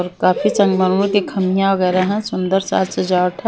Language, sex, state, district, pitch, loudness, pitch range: Hindi, female, Chhattisgarh, Raipur, 190 Hz, -17 LUFS, 185-200 Hz